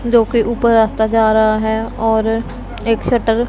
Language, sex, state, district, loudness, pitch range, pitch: Hindi, female, Punjab, Pathankot, -15 LUFS, 220-235 Hz, 225 Hz